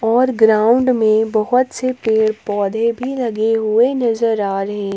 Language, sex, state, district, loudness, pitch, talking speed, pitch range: Hindi, female, Jharkhand, Palamu, -16 LUFS, 225 Hz, 155 wpm, 215-245 Hz